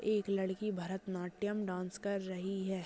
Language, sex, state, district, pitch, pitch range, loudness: Hindi, female, Maharashtra, Dhule, 190 Hz, 185-205 Hz, -38 LUFS